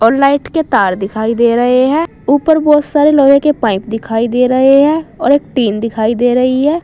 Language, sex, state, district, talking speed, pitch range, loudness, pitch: Hindi, female, Uttar Pradesh, Saharanpur, 220 wpm, 230-290 Hz, -11 LUFS, 255 Hz